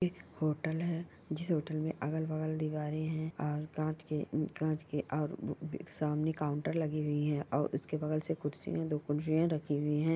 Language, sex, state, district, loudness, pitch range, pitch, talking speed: Hindi, female, Bihar, Jamui, -36 LUFS, 150-160 Hz, 155 Hz, 175 wpm